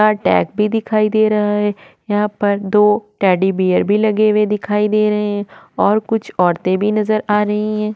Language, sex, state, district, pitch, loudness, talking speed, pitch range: Hindi, female, Maharashtra, Aurangabad, 210 Hz, -16 LUFS, 195 wpm, 205-215 Hz